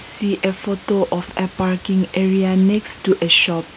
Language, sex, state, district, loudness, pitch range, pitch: English, female, Nagaland, Kohima, -17 LUFS, 185-195 Hz, 190 Hz